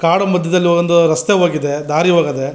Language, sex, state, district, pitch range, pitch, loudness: Kannada, male, Karnataka, Mysore, 155-175 Hz, 170 Hz, -14 LUFS